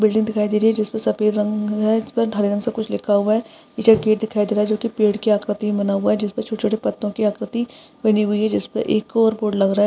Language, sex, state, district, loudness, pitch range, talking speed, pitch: Hindi, female, Maharashtra, Pune, -20 LUFS, 210-225 Hz, 280 wpm, 215 Hz